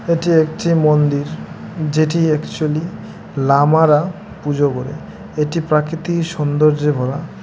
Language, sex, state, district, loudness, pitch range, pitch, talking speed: Bengali, male, West Bengal, Dakshin Dinajpur, -16 LUFS, 150-165 Hz, 155 Hz, 95 wpm